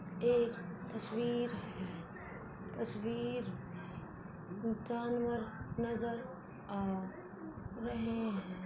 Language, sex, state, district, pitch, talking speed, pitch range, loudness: Hindi, female, Uttar Pradesh, Budaun, 230 Hz, 55 wpm, 190-235 Hz, -40 LUFS